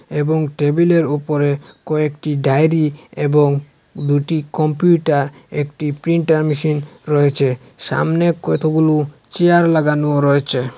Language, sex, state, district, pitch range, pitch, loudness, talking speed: Bengali, male, Assam, Hailakandi, 145-160 Hz, 150 Hz, -17 LUFS, 95 wpm